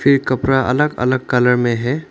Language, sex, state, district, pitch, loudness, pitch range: Hindi, male, Arunachal Pradesh, Lower Dibang Valley, 130 Hz, -16 LUFS, 125-140 Hz